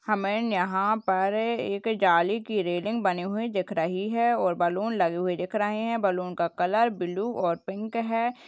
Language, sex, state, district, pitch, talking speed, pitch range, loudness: Hindi, female, Bihar, Purnia, 200 Hz, 185 wpm, 180-225 Hz, -27 LUFS